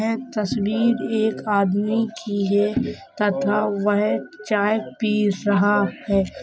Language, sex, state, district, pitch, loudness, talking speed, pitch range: Hindi, female, Uttar Pradesh, Hamirpur, 210 Hz, -21 LUFS, 110 wpm, 205-220 Hz